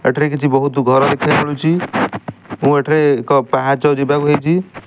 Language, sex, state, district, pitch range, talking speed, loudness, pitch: Odia, male, Odisha, Nuapada, 140-150 Hz, 150 wpm, -15 LUFS, 145 Hz